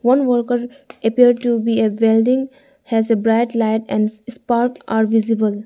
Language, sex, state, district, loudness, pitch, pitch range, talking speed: English, female, Arunachal Pradesh, Lower Dibang Valley, -17 LUFS, 230 Hz, 225-245 Hz, 160 wpm